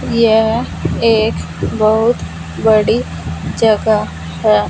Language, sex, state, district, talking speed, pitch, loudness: Hindi, female, Punjab, Fazilka, 75 wpm, 220 Hz, -15 LUFS